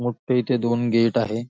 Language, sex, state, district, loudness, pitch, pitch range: Marathi, male, Maharashtra, Nagpur, -22 LUFS, 120 Hz, 115-125 Hz